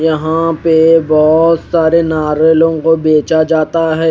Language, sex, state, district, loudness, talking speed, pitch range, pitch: Hindi, male, Odisha, Khordha, -11 LUFS, 130 wpm, 160-165 Hz, 160 Hz